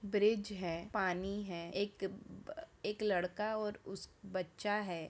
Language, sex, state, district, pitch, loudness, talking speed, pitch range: Hindi, female, Bihar, Samastipur, 200 Hz, -39 LUFS, 155 wpm, 180-210 Hz